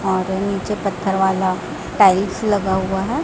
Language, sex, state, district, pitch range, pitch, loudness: Hindi, female, Chhattisgarh, Raipur, 190-200 Hz, 190 Hz, -19 LUFS